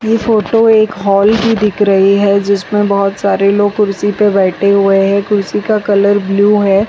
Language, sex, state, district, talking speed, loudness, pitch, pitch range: Hindi, female, Bihar, West Champaran, 190 wpm, -11 LUFS, 205 Hz, 200-210 Hz